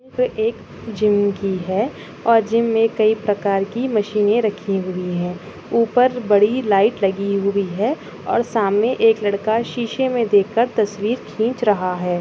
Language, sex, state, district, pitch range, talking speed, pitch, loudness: Hindi, female, Chhattisgarh, Kabirdham, 200-230 Hz, 150 wpm, 215 Hz, -19 LUFS